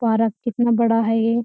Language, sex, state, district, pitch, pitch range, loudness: Hindi, female, Uttar Pradesh, Jyotiba Phule Nagar, 230 Hz, 225-235 Hz, -19 LUFS